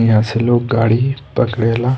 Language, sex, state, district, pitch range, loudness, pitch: Bhojpuri, male, Bihar, East Champaran, 115-125 Hz, -16 LUFS, 115 Hz